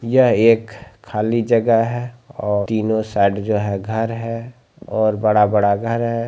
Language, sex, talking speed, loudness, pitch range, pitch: Maithili, male, 155 wpm, -18 LUFS, 105-115 Hz, 115 Hz